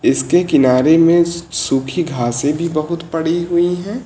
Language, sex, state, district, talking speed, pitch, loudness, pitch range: Hindi, male, Uttar Pradesh, Lucknow, 150 wpm, 165 Hz, -15 LUFS, 150-175 Hz